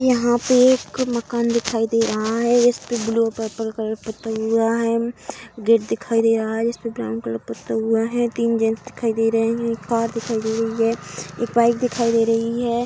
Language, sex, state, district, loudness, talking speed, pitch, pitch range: Hindi, female, Uttar Pradesh, Deoria, -20 LUFS, 190 wpm, 230 Hz, 225-235 Hz